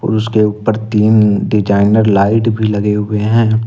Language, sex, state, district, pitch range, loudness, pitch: Hindi, male, Jharkhand, Ranchi, 105-110 Hz, -12 LUFS, 110 Hz